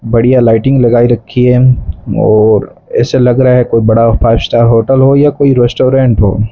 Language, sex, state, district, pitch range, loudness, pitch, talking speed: Hindi, male, Rajasthan, Bikaner, 115-130 Hz, -9 LUFS, 120 Hz, 185 wpm